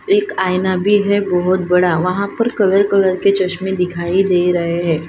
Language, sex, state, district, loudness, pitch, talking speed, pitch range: Hindi, female, Maharashtra, Gondia, -15 LUFS, 185 Hz, 190 wpm, 180-200 Hz